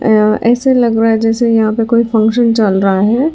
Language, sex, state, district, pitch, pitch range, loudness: Hindi, female, Karnataka, Bangalore, 225 Hz, 215-235 Hz, -11 LUFS